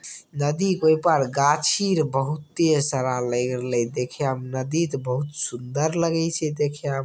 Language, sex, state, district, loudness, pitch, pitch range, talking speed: Maithili, male, Bihar, Begusarai, -23 LUFS, 145 Hz, 130-160 Hz, 125 wpm